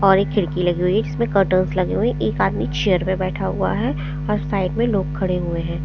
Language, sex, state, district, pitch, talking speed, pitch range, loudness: Hindi, female, Bihar, Patna, 185 Hz, 255 wpm, 165-190 Hz, -20 LUFS